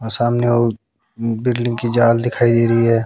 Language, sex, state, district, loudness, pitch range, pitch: Hindi, male, Haryana, Jhajjar, -17 LUFS, 115-120 Hz, 115 Hz